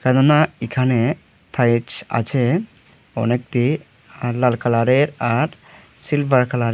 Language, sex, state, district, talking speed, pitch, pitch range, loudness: Bengali, male, Tripura, Unakoti, 90 wpm, 125 Hz, 120-140 Hz, -19 LUFS